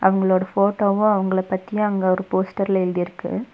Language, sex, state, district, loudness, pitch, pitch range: Tamil, female, Tamil Nadu, Nilgiris, -21 LUFS, 190 Hz, 185-205 Hz